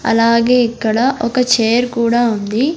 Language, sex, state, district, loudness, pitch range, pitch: Telugu, female, Andhra Pradesh, Sri Satya Sai, -14 LUFS, 230-250 Hz, 235 Hz